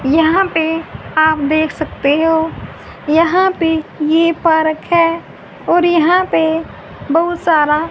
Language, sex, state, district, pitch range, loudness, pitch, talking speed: Hindi, female, Haryana, Rohtak, 315-335 Hz, -14 LUFS, 320 Hz, 120 wpm